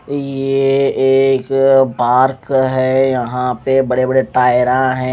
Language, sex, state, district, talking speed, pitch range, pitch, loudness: Hindi, male, Odisha, Khordha, 130 wpm, 125-135 Hz, 130 Hz, -14 LUFS